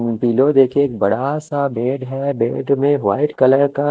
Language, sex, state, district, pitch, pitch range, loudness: Hindi, male, Chandigarh, Chandigarh, 135 Hz, 120-140 Hz, -17 LUFS